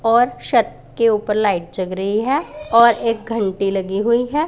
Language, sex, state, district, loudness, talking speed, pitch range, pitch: Hindi, female, Punjab, Pathankot, -18 LUFS, 185 wpm, 200-240 Hz, 225 Hz